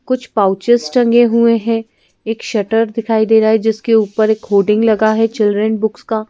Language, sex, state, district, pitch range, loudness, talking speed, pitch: Hindi, female, Madhya Pradesh, Bhopal, 215-230 Hz, -14 LUFS, 190 wpm, 220 Hz